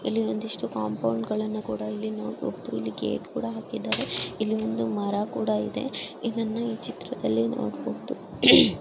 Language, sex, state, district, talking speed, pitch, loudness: Kannada, male, Karnataka, Mysore, 165 wpm, 110 Hz, -27 LUFS